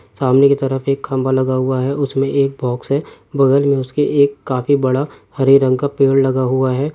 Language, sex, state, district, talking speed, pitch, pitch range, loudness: Hindi, male, Andhra Pradesh, Guntur, 205 wpm, 135 Hz, 130-140 Hz, -16 LUFS